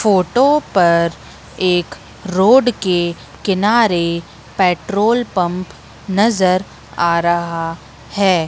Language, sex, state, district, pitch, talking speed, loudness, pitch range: Hindi, female, Madhya Pradesh, Katni, 185 Hz, 85 wpm, -16 LUFS, 170-205 Hz